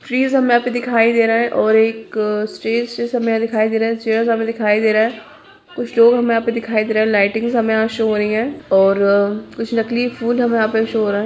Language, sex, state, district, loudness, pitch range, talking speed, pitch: Hindi, female, Bihar, Jamui, -16 LUFS, 220-235 Hz, 275 wpm, 225 Hz